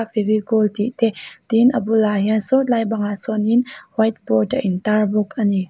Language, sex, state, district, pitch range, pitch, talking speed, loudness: Mizo, female, Mizoram, Aizawl, 210-225 Hz, 215 Hz, 190 wpm, -17 LUFS